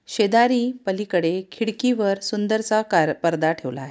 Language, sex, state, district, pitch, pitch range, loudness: Marathi, female, Maharashtra, Pune, 200 Hz, 170-220 Hz, -21 LUFS